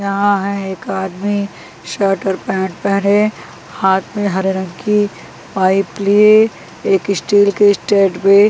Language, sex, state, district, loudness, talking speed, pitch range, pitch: Hindi, female, Punjab, Pathankot, -15 LUFS, 150 wpm, 190-205 Hz, 200 Hz